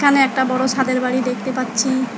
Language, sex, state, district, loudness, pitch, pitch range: Bengali, female, West Bengal, Alipurduar, -18 LUFS, 260 Hz, 255-260 Hz